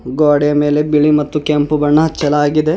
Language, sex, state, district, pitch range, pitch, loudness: Kannada, male, Karnataka, Bidar, 145-150 Hz, 150 Hz, -13 LUFS